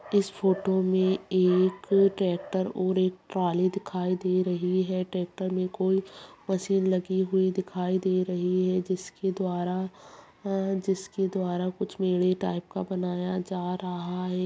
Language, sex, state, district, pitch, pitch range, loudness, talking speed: Hindi, female, Bihar, Bhagalpur, 185 Hz, 180-190 Hz, -28 LUFS, 140 wpm